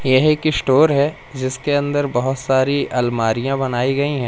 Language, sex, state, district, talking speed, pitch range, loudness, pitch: Hindi, male, Madhya Pradesh, Umaria, 170 wpm, 130-145 Hz, -18 LUFS, 135 Hz